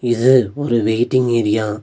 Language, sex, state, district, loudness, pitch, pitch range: Tamil, male, Tamil Nadu, Nilgiris, -16 LUFS, 120 Hz, 110-125 Hz